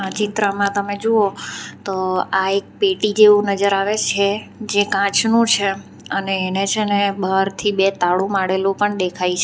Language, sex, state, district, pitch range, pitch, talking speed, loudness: Gujarati, female, Gujarat, Valsad, 195-205 Hz, 200 Hz, 160 wpm, -18 LUFS